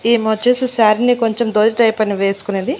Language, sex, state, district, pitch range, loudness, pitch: Telugu, female, Andhra Pradesh, Annamaya, 215-240 Hz, -15 LUFS, 225 Hz